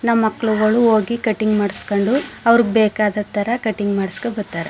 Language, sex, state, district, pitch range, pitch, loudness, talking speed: Kannada, female, Karnataka, Mysore, 205-235 Hz, 215 Hz, -18 LUFS, 130 wpm